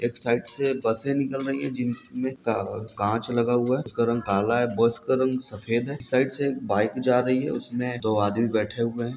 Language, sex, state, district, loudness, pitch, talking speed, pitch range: Hindi, male, Bihar, Samastipur, -25 LUFS, 120 Hz, 230 wpm, 115-130 Hz